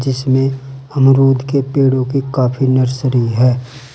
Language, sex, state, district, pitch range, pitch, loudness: Hindi, male, Uttar Pradesh, Saharanpur, 130-135 Hz, 135 Hz, -14 LUFS